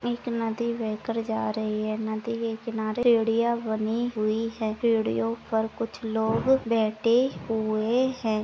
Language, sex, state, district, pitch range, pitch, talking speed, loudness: Hindi, female, Bihar, Jahanabad, 220-235 Hz, 225 Hz, 150 wpm, -26 LUFS